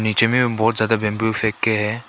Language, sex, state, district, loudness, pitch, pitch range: Hindi, male, Arunachal Pradesh, Papum Pare, -19 LUFS, 110 Hz, 110-115 Hz